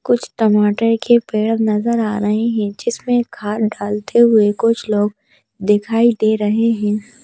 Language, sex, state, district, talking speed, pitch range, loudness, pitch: Hindi, female, Madhya Pradesh, Bhopal, 140 wpm, 210-235 Hz, -16 LUFS, 220 Hz